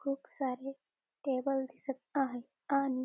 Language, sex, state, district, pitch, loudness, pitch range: Marathi, female, Maharashtra, Dhule, 270 Hz, -36 LUFS, 260-275 Hz